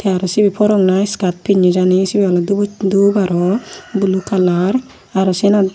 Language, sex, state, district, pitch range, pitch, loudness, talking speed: Chakma, female, Tripura, Unakoti, 185-205 Hz, 195 Hz, -15 LUFS, 175 wpm